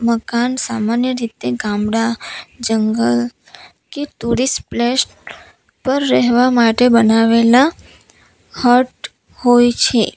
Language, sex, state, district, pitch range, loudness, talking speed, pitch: Gujarati, female, Gujarat, Valsad, 225-250 Hz, -15 LUFS, 90 wpm, 235 Hz